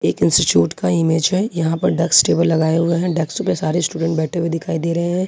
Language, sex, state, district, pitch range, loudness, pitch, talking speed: Hindi, female, Jharkhand, Ranchi, 160-175 Hz, -17 LUFS, 165 Hz, 250 wpm